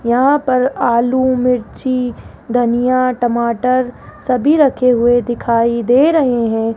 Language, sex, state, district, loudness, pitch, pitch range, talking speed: Hindi, female, Rajasthan, Jaipur, -14 LUFS, 250 Hz, 235-255 Hz, 115 wpm